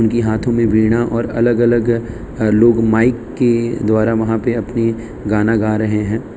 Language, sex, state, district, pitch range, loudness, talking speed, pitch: Hindi, male, Gujarat, Valsad, 110-120 Hz, -15 LUFS, 180 wpm, 115 Hz